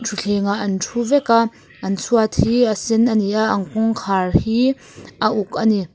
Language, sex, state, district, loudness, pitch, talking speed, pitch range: Mizo, female, Mizoram, Aizawl, -18 LUFS, 215 Hz, 210 wpm, 200-230 Hz